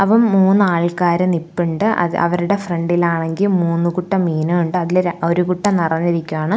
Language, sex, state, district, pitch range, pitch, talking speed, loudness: Malayalam, female, Kerala, Thiruvananthapuram, 170-185 Hz, 175 Hz, 135 wpm, -17 LUFS